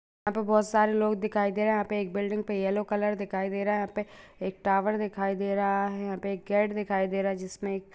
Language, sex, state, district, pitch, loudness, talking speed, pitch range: Hindi, female, Bihar, Lakhisarai, 200 Hz, -29 LUFS, 285 wpm, 195-210 Hz